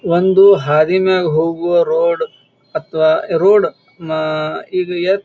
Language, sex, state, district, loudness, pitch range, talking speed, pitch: Kannada, male, Karnataka, Bijapur, -14 LUFS, 160-215 Hz, 115 wpm, 185 Hz